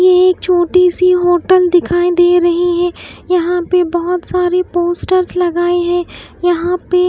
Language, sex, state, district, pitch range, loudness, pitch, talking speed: Hindi, female, Bihar, West Champaran, 350-360 Hz, -13 LUFS, 355 Hz, 160 wpm